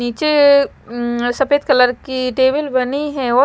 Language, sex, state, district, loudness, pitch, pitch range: Hindi, female, Himachal Pradesh, Shimla, -16 LUFS, 260 Hz, 245-280 Hz